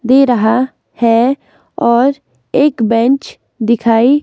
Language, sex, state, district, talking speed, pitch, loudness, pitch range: Hindi, female, Himachal Pradesh, Shimla, 100 wpm, 245 Hz, -13 LUFS, 230-265 Hz